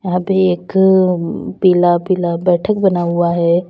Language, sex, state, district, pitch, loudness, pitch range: Hindi, female, Uttar Pradesh, Lalitpur, 180 Hz, -14 LUFS, 175-190 Hz